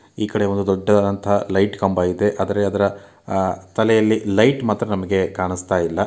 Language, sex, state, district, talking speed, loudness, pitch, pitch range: Kannada, male, Karnataka, Mysore, 150 wpm, -19 LUFS, 100 Hz, 95-105 Hz